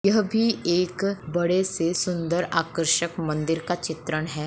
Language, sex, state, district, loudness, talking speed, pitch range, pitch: Hindi, female, Bihar, Begusarai, -24 LUFS, 145 wpm, 165-185 Hz, 175 Hz